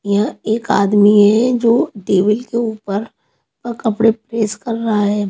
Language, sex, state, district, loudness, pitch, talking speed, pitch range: Hindi, female, Maharashtra, Mumbai Suburban, -15 LUFS, 220 Hz, 160 wpm, 205-230 Hz